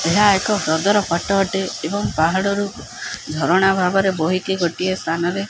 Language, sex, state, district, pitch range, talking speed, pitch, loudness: Odia, male, Odisha, Khordha, 165-195 Hz, 165 wpm, 185 Hz, -19 LUFS